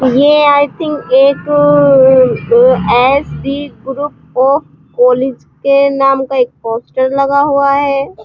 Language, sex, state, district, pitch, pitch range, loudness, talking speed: Hindi, female, Uttar Pradesh, Muzaffarnagar, 275 Hz, 260-285 Hz, -11 LUFS, 125 wpm